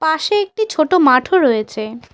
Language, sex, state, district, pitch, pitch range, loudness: Bengali, female, West Bengal, Cooch Behar, 310 Hz, 225-365 Hz, -15 LUFS